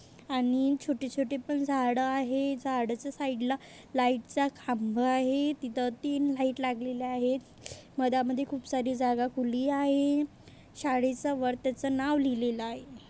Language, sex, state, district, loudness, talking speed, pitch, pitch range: Marathi, female, Maharashtra, Aurangabad, -30 LUFS, 130 wpm, 260 Hz, 250-275 Hz